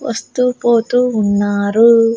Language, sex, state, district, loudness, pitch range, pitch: Telugu, female, Andhra Pradesh, Annamaya, -14 LUFS, 215-245 Hz, 230 Hz